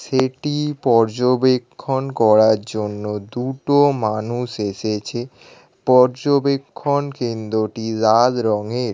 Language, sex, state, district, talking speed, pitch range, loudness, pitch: Bengali, male, West Bengal, Kolkata, 80 wpm, 110-135 Hz, -19 LUFS, 120 Hz